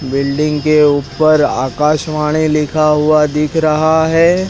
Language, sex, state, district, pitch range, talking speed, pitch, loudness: Hindi, male, Madhya Pradesh, Dhar, 150-155 Hz, 120 wpm, 150 Hz, -13 LUFS